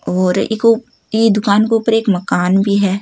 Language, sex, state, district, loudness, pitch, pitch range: Marwari, female, Rajasthan, Nagaur, -14 LUFS, 205 Hz, 195-225 Hz